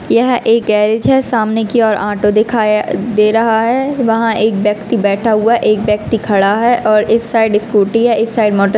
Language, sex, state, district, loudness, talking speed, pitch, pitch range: Hindi, female, Rajasthan, Churu, -12 LUFS, 210 wpm, 220 Hz, 210-230 Hz